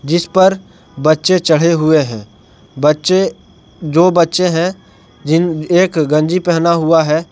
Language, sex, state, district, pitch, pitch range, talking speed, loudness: Hindi, male, Jharkhand, Palamu, 165 Hz, 155-180 Hz, 130 wpm, -13 LUFS